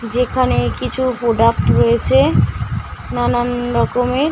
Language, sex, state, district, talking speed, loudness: Bengali, female, West Bengal, Malda, 70 wpm, -16 LUFS